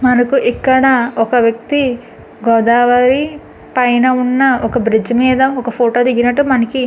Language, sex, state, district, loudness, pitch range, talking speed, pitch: Telugu, female, Andhra Pradesh, Anantapur, -13 LUFS, 240-260 Hz, 130 wpm, 245 Hz